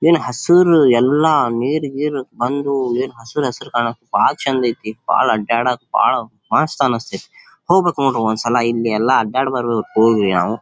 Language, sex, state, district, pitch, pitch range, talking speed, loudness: Kannada, male, Karnataka, Dharwad, 120 Hz, 115-140 Hz, 170 wpm, -17 LUFS